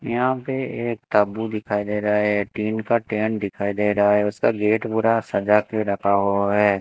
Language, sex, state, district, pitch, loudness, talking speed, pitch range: Hindi, male, Haryana, Jhajjar, 105 Hz, -21 LUFS, 200 wpm, 105-110 Hz